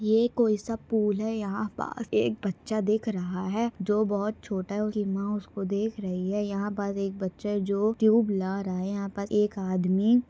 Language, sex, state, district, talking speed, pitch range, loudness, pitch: Hindi, female, Maharashtra, Solapur, 200 wpm, 195-220 Hz, -28 LUFS, 205 Hz